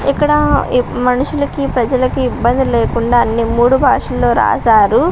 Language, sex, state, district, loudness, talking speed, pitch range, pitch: Telugu, female, Andhra Pradesh, Visakhapatnam, -13 LUFS, 105 wpm, 240-275 Hz, 255 Hz